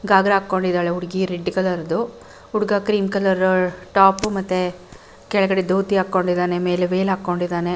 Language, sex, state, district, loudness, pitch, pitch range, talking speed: Kannada, female, Karnataka, Bellary, -20 LUFS, 185 Hz, 180-195 Hz, 140 wpm